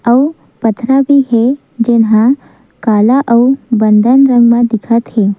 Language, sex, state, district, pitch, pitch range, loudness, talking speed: Chhattisgarhi, female, Chhattisgarh, Sukma, 235 Hz, 225-265 Hz, -10 LUFS, 145 wpm